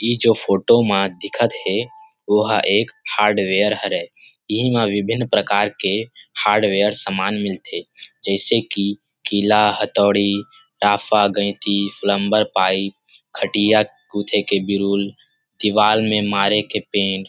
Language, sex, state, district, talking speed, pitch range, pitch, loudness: Chhattisgarhi, male, Chhattisgarh, Rajnandgaon, 125 wpm, 100-110 Hz, 105 Hz, -18 LUFS